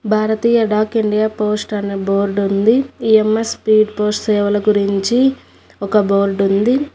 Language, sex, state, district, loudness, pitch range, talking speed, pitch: Telugu, female, Telangana, Hyderabad, -15 LUFS, 200-225 Hz, 130 wpm, 215 Hz